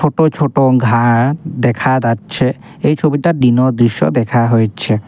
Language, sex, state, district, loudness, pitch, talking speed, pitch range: Bengali, male, Assam, Kamrup Metropolitan, -13 LUFS, 125 Hz, 130 wpm, 120-145 Hz